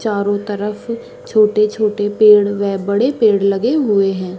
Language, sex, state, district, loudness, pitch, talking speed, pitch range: Hindi, female, Chhattisgarh, Rajnandgaon, -15 LUFS, 210 Hz, 150 wpm, 200-215 Hz